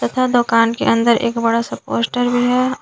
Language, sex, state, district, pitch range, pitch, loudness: Hindi, female, Jharkhand, Garhwa, 230-245 Hz, 235 Hz, -16 LUFS